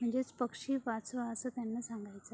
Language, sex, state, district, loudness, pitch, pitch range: Marathi, female, Maharashtra, Sindhudurg, -39 LUFS, 235 Hz, 225-250 Hz